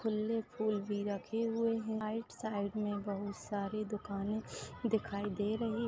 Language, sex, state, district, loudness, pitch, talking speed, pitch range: Hindi, female, Maharashtra, Solapur, -38 LUFS, 215 Hz, 155 wpm, 205-225 Hz